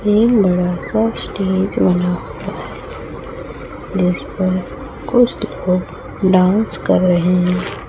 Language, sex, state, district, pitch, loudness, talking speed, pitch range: Hindi, female, Chhattisgarh, Raipur, 185 Hz, -16 LUFS, 100 wpm, 180-210 Hz